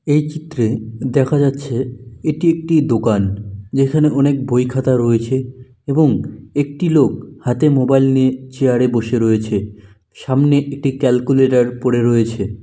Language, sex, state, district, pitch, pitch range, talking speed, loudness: Bengali, male, West Bengal, Malda, 130 Hz, 115-140 Hz, 125 wpm, -16 LUFS